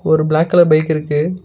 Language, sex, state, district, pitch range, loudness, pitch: Tamil, male, Karnataka, Bangalore, 155-165 Hz, -14 LUFS, 155 Hz